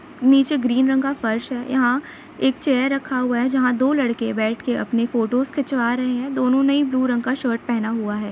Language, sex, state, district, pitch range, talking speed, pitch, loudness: Hindi, female, Jharkhand, Sahebganj, 235-270 Hz, 225 wpm, 255 Hz, -20 LUFS